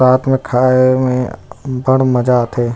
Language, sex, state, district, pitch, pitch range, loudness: Chhattisgarhi, male, Chhattisgarh, Rajnandgaon, 130 Hz, 125-130 Hz, -14 LUFS